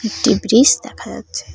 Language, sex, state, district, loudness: Bengali, female, West Bengal, Cooch Behar, -14 LUFS